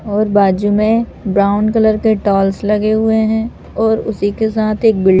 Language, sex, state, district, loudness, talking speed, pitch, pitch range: Hindi, female, Madhya Pradesh, Bhopal, -14 LUFS, 195 wpm, 215 Hz, 205-220 Hz